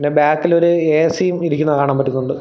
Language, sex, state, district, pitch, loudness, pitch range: Malayalam, male, Kerala, Thiruvananthapuram, 155 Hz, -15 LUFS, 145-170 Hz